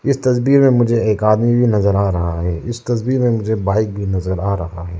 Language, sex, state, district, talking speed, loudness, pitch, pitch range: Hindi, male, Arunachal Pradesh, Lower Dibang Valley, 250 wpm, -16 LUFS, 110 Hz, 95-120 Hz